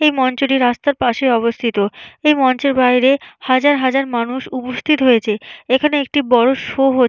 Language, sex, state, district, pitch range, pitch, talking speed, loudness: Bengali, female, West Bengal, Jalpaiguri, 245-280 Hz, 260 Hz, 160 wpm, -16 LUFS